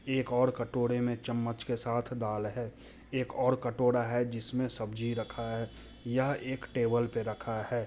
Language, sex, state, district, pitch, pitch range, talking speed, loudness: Hindi, male, Bihar, Muzaffarpur, 120 Hz, 115-125 Hz, 185 wpm, -32 LUFS